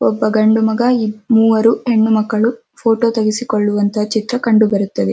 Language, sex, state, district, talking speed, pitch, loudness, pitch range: Kannada, female, Karnataka, Dharwad, 140 wpm, 220 Hz, -15 LUFS, 215-230 Hz